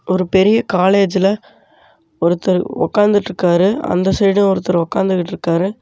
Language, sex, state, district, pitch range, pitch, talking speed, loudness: Tamil, male, Tamil Nadu, Namakkal, 180-200 Hz, 190 Hz, 95 wpm, -15 LUFS